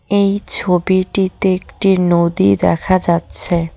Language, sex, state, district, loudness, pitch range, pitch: Bengali, female, West Bengal, Cooch Behar, -15 LUFS, 170-190 Hz, 185 Hz